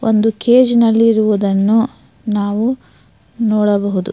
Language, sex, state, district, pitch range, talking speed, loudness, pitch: Kannada, female, Karnataka, Mysore, 205-230 Hz, 85 wpm, -14 LUFS, 220 Hz